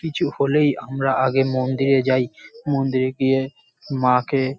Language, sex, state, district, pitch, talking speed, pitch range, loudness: Bengali, male, West Bengal, North 24 Parganas, 135 Hz, 130 wpm, 130-135 Hz, -20 LUFS